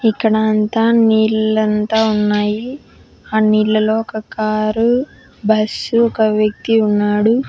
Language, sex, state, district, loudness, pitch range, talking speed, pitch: Telugu, female, Telangana, Hyderabad, -15 LUFS, 215-225 Hz, 95 wpm, 220 Hz